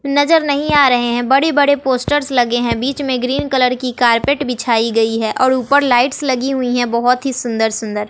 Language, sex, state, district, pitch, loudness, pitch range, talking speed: Hindi, female, Bihar, West Champaran, 255 Hz, -15 LUFS, 240-275 Hz, 215 wpm